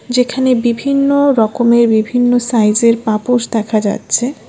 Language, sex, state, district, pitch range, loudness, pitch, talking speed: Bengali, female, West Bengal, Alipurduar, 225-250 Hz, -13 LUFS, 240 Hz, 105 wpm